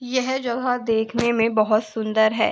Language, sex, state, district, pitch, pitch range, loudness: Hindi, female, Uttar Pradesh, Hamirpur, 225 Hz, 220-245 Hz, -21 LUFS